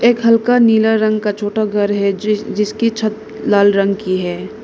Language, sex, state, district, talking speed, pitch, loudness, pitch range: Hindi, female, Arunachal Pradesh, Lower Dibang Valley, 180 wpm, 215 Hz, -15 LUFS, 205-220 Hz